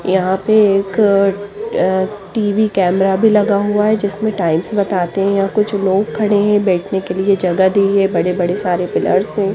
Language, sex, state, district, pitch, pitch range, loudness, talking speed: Hindi, female, Chandigarh, Chandigarh, 195 Hz, 190-210 Hz, -15 LUFS, 175 wpm